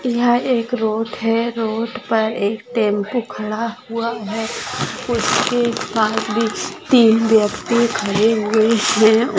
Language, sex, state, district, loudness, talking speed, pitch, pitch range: Hindi, female, Maharashtra, Nagpur, -18 LUFS, 120 wpm, 225 Hz, 220-235 Hz